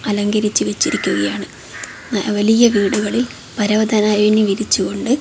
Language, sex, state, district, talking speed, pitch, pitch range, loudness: Malayalam, female, Kerala, Kozhikode, 80 wpm, 210 Hz, 210-220 Hz, -16 LUFS